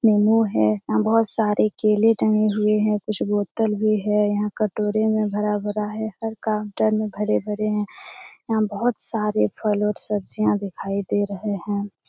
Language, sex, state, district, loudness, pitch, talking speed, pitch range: Hindi, female, Bihar, Jamui, -21 LUFS, 210 Hz, 165 wpm, 205-215 Hz